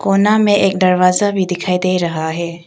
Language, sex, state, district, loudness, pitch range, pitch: Hindi, female, Arunachal Pradesh, Papum Pare, -14 LUFS, 175-195 Hz, 185 Hz